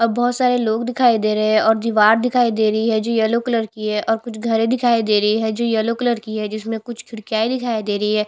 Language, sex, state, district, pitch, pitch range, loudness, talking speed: Hindi, female, Chhattisgarh, Bastar, 225 Hz, 215-235 Hz, -18 LUFS, 280 wpm